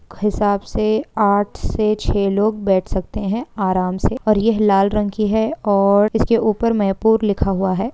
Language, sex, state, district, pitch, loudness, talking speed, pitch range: Hindi, female, Bihar, Samastipur, 210 Hz, -18 LUFS, 195 wpm, 195-220 Hz